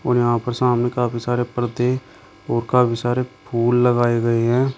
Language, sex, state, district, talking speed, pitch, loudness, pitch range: Hindi, male, Uttar Pradesh, Shamli, 175 wpm, 120 Hz, -20 LUFS, 120-125 Hz